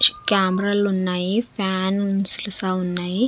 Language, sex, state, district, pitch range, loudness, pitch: Telugu, female, Andhra Pradesh, Sri Satya Sai, 185-205 Hz, -20 LUFS, 195 Hz